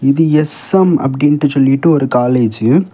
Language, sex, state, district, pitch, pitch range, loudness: Tamil, male, Tamil Nadu, Kanyakumari, 145 Hz, 135-155 Hz, -12 LUFS